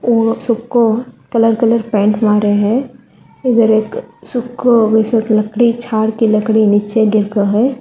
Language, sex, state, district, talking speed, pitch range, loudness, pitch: Hindi, female, Telangana, Hyderabad, 140 wpm, 215-235 Hz, -13 LUFS, 225 Hz